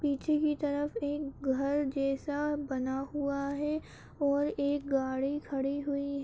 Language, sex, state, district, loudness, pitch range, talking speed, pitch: Kumaoni, female, Uttarakhand, Uttarkashi, -32 LUFS, 275-290 Hz, 145 wpm, 285 Hz